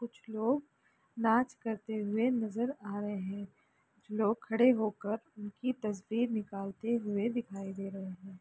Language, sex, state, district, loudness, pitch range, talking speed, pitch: Hindi, female, Bihar, Jamui, -34 LUFS, 200-235 Hz, 135 wpm, 215 Hz